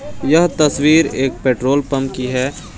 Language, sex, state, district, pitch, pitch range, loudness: Hindi, male, Jharkhand, Garhwa, 140 Hz, 130-155 Hz, -16 LUFS